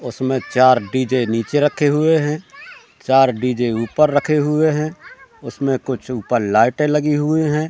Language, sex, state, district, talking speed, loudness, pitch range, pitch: Hindi, male, Madhya Pradesh, Katni, 155 wpm, -17 LUFS, 125-150 Hz, 135 Hz